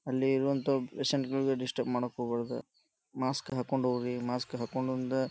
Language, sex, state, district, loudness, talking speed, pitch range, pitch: Kannada, male, Karnataka, Dharwad, -33 LUFS, 160 wpm, 125-135 Hz, 130 Hz